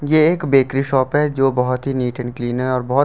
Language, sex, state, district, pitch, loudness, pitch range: Hindi, male, Delhi, New Delhi, 135 Hz, -18 LUFS, 125-140 Hz